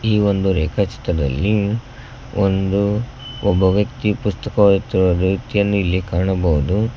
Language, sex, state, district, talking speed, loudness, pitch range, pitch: Kannada, male, Karnataka, Koppal, 95 wpm, -18 LUFS, 95-110 Hz, 100 Hz